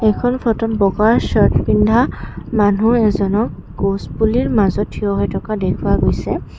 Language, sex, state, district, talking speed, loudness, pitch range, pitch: Assamese, female, Assam, Kamrup Metropolitan, 135 wpm, -16 LUFS, 200-225 Hz, 215 Hz